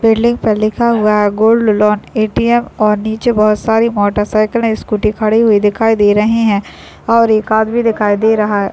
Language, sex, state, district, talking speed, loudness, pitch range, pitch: Hindi, male, Bihar, Madhepura, 190 wpm, -12 LUFS, 210-225 Hz, 215 Hz